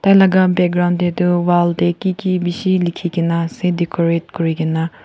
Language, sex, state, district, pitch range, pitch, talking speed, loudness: Nagamese, female, Nagaland, Kohima, 170-180 Hz, 175 Hz, 140 wpm, -16 LUFS